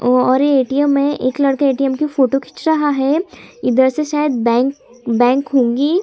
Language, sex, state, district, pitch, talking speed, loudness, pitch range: Hindi, female, Chhattisgarh, Sukma, 270 Hz, 180 wpm, -15 LUFS, 255-290 Hz